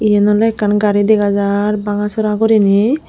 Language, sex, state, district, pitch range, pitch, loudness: Chakma, female, Tripura, Unakoti, 205-215 Hz, 210 Hz, -14 LUFS